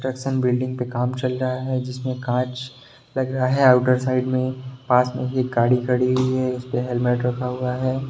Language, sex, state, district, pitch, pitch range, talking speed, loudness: Hindi, male, Bihar, Sitamarhi, 130 Hz, 125-130 Hz, 200 wpm, -22 LUFS